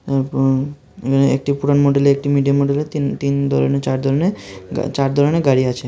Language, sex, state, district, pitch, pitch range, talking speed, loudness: Bengali, male, Tripura, Unakoti, 140 Hz, 130-140 Hz, 175 wpm, -17 LUFS